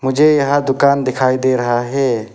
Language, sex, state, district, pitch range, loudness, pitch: Hindi, male, Arunachal Pradesh, Papum Pare, 125-140 Hz, -15 LUFS, 130 Hz